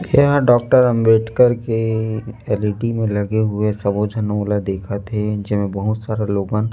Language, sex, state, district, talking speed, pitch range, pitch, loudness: Chhattisgarhi, male, Chhattisgarh, Rajnandgaon, 160 wpm, 105-115 Hz, 110 Hz, -18 LUFS